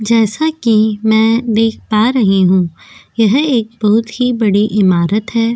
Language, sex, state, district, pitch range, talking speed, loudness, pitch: Hindi, female, Goa, North and South Goa, 210-230 Hz, 150 wpm, -13 LUFS, 220 Hz